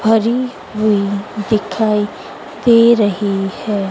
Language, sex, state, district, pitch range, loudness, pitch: Hindi, female, Madhya Pradesh, Dhar, 200-225 Hz, -15 LUFS, 210 Hz